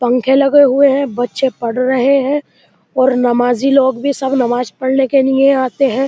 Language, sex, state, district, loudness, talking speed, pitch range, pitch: Hindi, male, Uttar Pradesh, Muzaffarnagar, -13 LUFS, 185 wpm, 250-275 Hz, 265 Hz